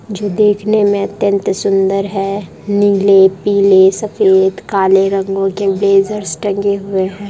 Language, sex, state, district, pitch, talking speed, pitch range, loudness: Hindi, female, Bihar, Darbhanga, 200 Hz, 130 wpm, 195-205 Hz, -13 LUFS